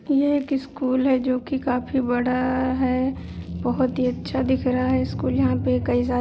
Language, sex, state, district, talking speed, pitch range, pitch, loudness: Hindi, female, Bihar, Bhagalpur, 205 wpm, 245-260 Hz, 255 Hz, -23 LUFS